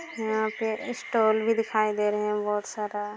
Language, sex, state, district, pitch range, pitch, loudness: Hindi, female, Bihar, Saran, 210-225 Hz, 220 Hz, -27 LUFS